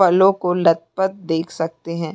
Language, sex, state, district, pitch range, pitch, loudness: Hindi, female, Uttar Pradesh, Muzaffarnagar, 165-190 Hz, 170 Hz, -19 LUFS